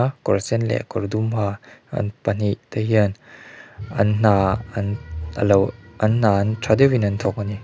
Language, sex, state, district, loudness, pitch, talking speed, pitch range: Mizo, male, Mizoram, Aizawl, -21 LUFS, 105 Hz, 180 wpm, 100-110 Hz